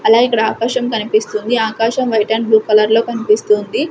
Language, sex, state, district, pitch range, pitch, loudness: Telugu, female, Andhra Pradesh, Sri Satya Sai, 215-230 Hz, 225 Hz, -14 LUFS